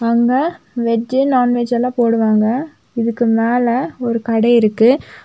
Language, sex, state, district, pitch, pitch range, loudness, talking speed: Tamil, female, Tamil Nadu, Nilgiris, 235 Hz, 230-250 Hz, -15 LUFS, 115 wpm